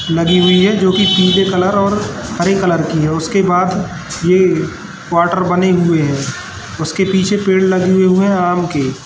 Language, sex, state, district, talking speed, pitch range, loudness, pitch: Hindi, male, Madhya Pradesh, Katni, 180 wpm, 170-190 Hz, -13 LUFS, 180 Hz